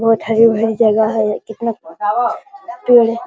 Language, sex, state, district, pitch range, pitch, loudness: Hindi, male, Bihar, Supaul, 220-235 Hz, 225 Hz, -15 LUFS